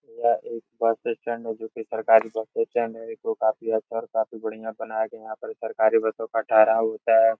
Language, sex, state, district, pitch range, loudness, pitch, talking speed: Hindi, male, Uttar Pradesh, Etah, 110-115 Hz, -24 LUFS, 115 Hz, 210 wpm